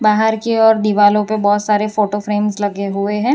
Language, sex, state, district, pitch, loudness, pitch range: Hindi, female, Gujarat, Valsad, 210 Hz, -15 LUFS, 205-215 Hz